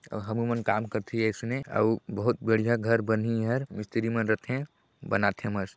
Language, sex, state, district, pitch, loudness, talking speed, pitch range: Hindi, male, Chhattisgarh, Sarguja, 115 Hz, -28 LUFS, 185 wpm, 110-120 Hz